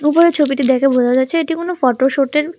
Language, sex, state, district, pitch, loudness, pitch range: Bengali, female, Tripura, West Tripura, 285 Hz, -15 LUFS, 260-325 Hz